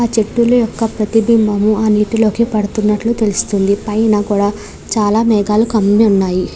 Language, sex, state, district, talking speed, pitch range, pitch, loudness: Telugu, female, Andhra Pradesh, Krishna, 145 wpm, 210-225 Hz, 215 Hz, -14 LUFS